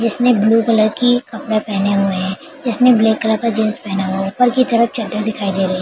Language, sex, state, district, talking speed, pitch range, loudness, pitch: Hindi, female, Bihar, Begusarai, 255 wpm, 200-235 Hz, -16 LUFS, 220 Hz